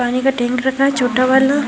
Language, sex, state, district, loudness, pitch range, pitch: Hindi, female, Maharashtra, Aurangabad, -16 LUFS, 250-270 Hz, 265 Hz